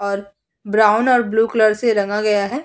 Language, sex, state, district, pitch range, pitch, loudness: Hindi, female, Bihar, Vaishali, 205-230 Hz, 215 Hz, -17 LUFS